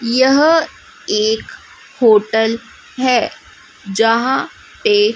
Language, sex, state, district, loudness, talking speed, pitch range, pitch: Hindi, female, Chhattisgarh, Raipur, -15 LUFS, 70 wpm, 225-275 Hz, 235 Hz